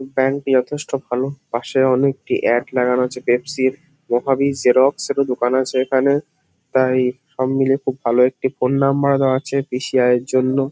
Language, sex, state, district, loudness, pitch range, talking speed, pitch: Bengali, male, West Bengal, North 24 Parganas, -18 LUFS, 125-135 Hz, 175 wpm, 130 Hz